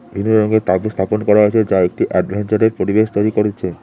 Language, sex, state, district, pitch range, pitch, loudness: Bengali, male, West Bengal, Cooch Behar, 100-110 Hz, 105 Hz, -15 LUFS